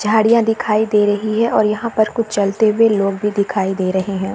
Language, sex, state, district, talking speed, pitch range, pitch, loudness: Hindi, female, Chhattisgarh, Raigarh, 235 wpm, 200-220 Hz, 215 Hz, -16 LUFS